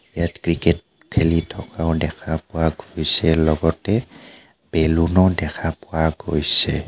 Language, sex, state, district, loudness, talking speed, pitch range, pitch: Assamese, male, Assam, Kamrup Metropolitan, -20 LUFS, 115 wpm, 80-85 Hz, 80 Hz